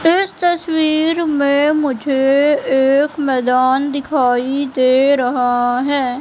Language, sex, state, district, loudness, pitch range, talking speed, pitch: Hindi, female, Madhya Pradesh, Katni, -15 LUFS, 255-300 Hz, 95 wpm, 280 Hz